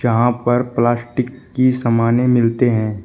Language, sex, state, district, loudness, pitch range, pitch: Hindi, male, Uttar Pradesh, Shamli, -17 LUFS, 115-125 Hz, 120 Hz